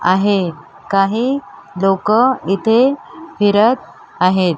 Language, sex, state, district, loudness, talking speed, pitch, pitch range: Marathi, female, Maharashtra, Mumbai Suburban, -15 LUFS, 80 wpm, 200 Hz, 185-240 Hz